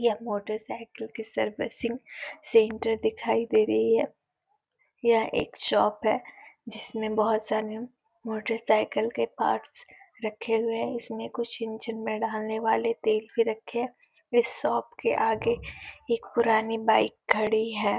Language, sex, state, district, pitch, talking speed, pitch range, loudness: Hindi, female, Uttar Pradesh, Etah, 225 Hz, 135 wpm, 215-235 Hz, -27 LUFS